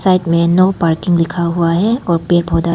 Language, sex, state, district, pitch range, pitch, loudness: Hindi, female, Arunachal Pradesh, Papum Pare, 170-185 Hz, 170 Hz, -14 LUFS